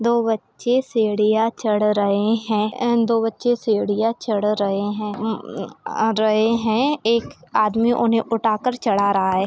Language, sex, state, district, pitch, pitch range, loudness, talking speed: Hindi, female, Bihar, Saran, 220 Hz, 210-230 Hz, -20 LUFS, 140 wpm